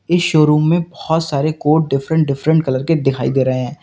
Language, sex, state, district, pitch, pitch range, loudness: Hindi, male, Uttar Pradesh, Lalitpur, 155 Hz, 135-160 Hz, -16 LUFS